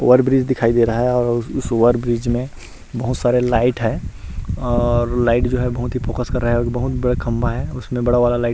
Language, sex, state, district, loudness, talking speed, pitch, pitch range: Hindi, male, Chhattisgarh, Rajnandgaon, -18 LUFS, 205 wpm, 120 Hz, 120-125 Hz